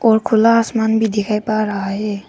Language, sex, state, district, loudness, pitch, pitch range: Hindi, female, Arunachal Pradesh, Papum Pare, -16 LUFS, 220 Hz, 205-225 Hz